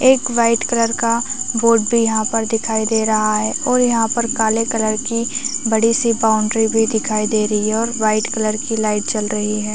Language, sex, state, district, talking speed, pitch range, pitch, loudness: Hindi, female, Chhattisgarh, Raigarh, 210 wpm, 215-230 Hz, 225 Hz, -16 LUFS